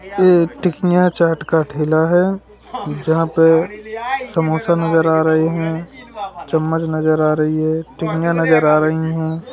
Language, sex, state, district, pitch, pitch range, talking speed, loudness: Hindi, male, Uttar Pradesh, Lalitpur, 165 Hz, 160-180 Hz, 145 wpm, -16 LUFS